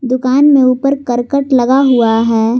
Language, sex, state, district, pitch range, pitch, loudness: Hindi, female, Jharkhand, Garhwa, 245-275 Hz, 255 Hz, -11 LUFS